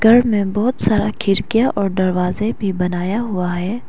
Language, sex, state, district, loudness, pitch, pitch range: Hindi, female, Arunachal Pradesh, Lower Dibang Valley, -18 LUFS, 205 Hz, 185-225 Hz